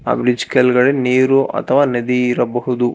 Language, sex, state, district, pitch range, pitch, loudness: Kannada, male, Karnataka, Bangalore, 125-130 Hz, 125 Hz, -15 LUFS